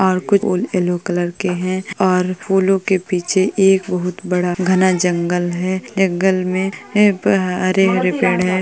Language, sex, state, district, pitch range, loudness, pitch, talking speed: Hindi, female, Uttar Pradesh, Jalaun, 180-190 Hz, -17 LUFS, 185 Hz, 160 wpm